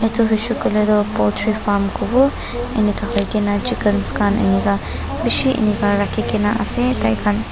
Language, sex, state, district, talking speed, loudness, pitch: Nagamese, female, Nagaland, Dimapur, 145 wpm, -18 LUFS, 210 Hz